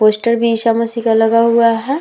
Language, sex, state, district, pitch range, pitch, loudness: Hindi, female, Bihar, Vaishali, 225-235 Hz, 230 Hz, -13 LUFS